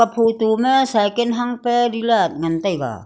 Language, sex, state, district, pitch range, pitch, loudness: Wancho, female, Arunachal Pradesh, Longding, 205-240 Hz, 230 Hz, -18 LUFS